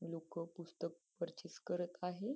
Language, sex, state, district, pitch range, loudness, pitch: Marathi, female, Maharashtra, Nagpur, 170-180 Hz, -46 LUFS, 170 Hz